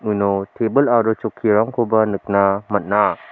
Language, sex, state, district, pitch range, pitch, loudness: Garo, male, Meghalaya, South Garo Hills, 100-115 Hz, 105 Hz, -18 LUFS